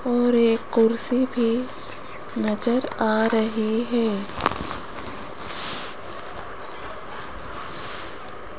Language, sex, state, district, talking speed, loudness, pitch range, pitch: Hindi, female, Rajasthan, Jaipur, 55 wpm, -24 LUFS, 220-245 Hz, 230 Hz